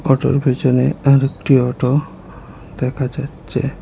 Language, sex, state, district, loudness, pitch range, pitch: Bengali, male, Assam, Hailakandi, -17 LUFS, 125-140 Hz, 135 Hz